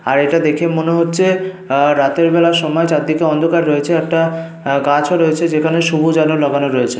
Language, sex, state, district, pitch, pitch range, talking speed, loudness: Bengali, male, Jharkhand, Sahebganj, 160 Hz, 145-165 Hz, 170 wpm, -14 LUFS